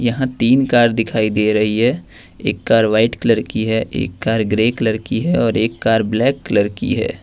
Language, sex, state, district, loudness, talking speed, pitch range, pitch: Hindi, male, Jharkhand, Ranchi, -16 LUFS, 215 wpm, 110-115 Hz, 110 Hz